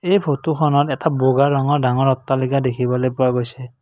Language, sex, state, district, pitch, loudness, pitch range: Assamese, male, Assam, Kamrup Metropolitan, 135 Hz, -18 LUFS, 130-145 Hz